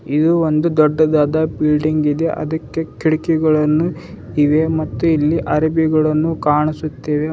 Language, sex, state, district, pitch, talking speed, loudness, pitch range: Kannada, male, Karnataka, Bidar, 155 Hz, 100 wpm, -16 LUFS, 150-160 Hz